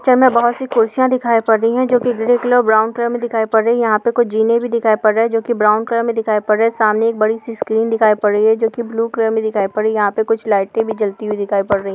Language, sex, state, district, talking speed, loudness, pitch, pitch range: Hindi, female, Bihar, Bhagalpur, 305 wpm, -15 LUFS, 225 Hz, 215-235 Hz